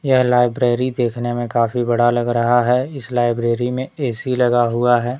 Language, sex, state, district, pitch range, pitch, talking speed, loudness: Hindi, male, Jharkhand, Deoghar, 120-125 Hz, 120 Hz, 185 wpm, -18 LUFS